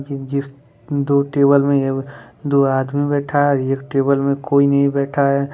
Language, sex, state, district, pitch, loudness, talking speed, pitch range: Hindi, male, Jharkhand, Ranchi, 140 Hz, -17 LUFS, 185 wpm, 135-140 Hz